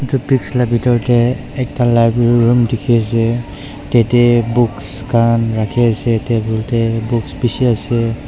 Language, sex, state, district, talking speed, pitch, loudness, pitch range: Nagamese, male, Nagaland, Dimapur, 150 wpm, 120 Hz, -14 LUFS, 115-120 Hz